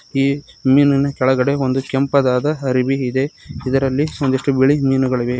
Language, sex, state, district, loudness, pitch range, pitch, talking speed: Kannada, male, Karnataka, Koppal, -17 LUFS, 130-140 Hz, 135 Hz, 120 wpm